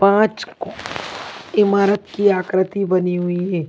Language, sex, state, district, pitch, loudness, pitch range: Hindi, female, Delhi, New Delhi, 195 Hz, -18 LUFS, 180-200 Hz